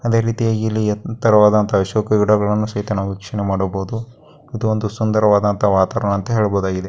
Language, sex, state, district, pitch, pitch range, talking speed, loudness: Kannada, male, Karnataka, Dakshina Kannada, 105 Hz, 100-110 Hz, 130 wpm, -17 LUFS